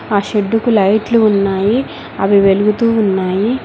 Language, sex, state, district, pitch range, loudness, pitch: Telugu, female, Telangana, Mahabubabad, 200-225 Hz, -13 LUFS, 210 Hz